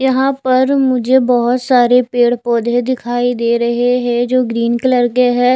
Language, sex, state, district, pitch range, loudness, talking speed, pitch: Hindi, female, Chhattisgarh, Raipur, 240-255 Hz, -13 LUFS, 170 wpm, 245 Hz